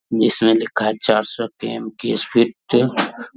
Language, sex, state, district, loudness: Hindi, male, Bihar, Vaishali, -18 LUFS